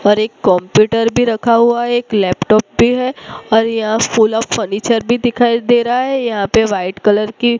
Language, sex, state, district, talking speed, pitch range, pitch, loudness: Hindi, female, Gujarat, Gandhinagar, 205 wpm, 215-240 Hz, 225 Hz, -14 LUFS